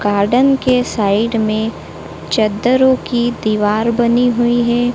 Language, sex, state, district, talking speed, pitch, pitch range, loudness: Hindi, female, Madhya Pradesh, Dhar, 120 wpm, 240 Hz, 215-245 Hz, -14 LUFS